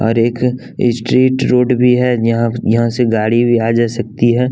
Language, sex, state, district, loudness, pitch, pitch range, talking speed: Hindi, male, Bihar, West Champaran, -14 LUFS, 120 Hz, 115-125 Hz, 200 wpm